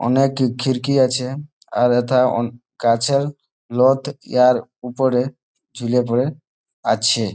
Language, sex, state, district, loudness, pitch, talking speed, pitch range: Bengali, male, West Bengal, Malda, -19 LUFS, 125 Hz, 100 wpm, 120-135 Hz